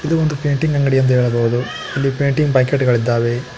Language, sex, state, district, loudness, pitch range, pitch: Kannada, male, Karnataka, Koppal, -16 LUFS, 120-145 Hz, 135 Hz